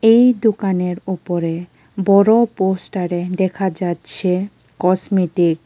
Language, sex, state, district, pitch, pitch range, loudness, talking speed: Bengali, female, Tripura, West Tripura, 185 Hz, 175-200 Hz, -17 LUFS, 95 wpm